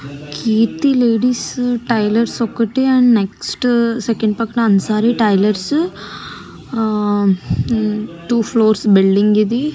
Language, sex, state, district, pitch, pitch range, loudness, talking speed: Telugu, female, Andhra Pradesh, Krishna, 225 Hz, 210-240 Hz, -15 LUFS, 80 wpm